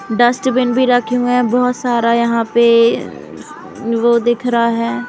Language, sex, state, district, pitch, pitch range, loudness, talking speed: Hindi, female, Uttar Pradesh, Jalaun, 240 Hz, 235-245 Hz, -14 LUFS, 155 wpm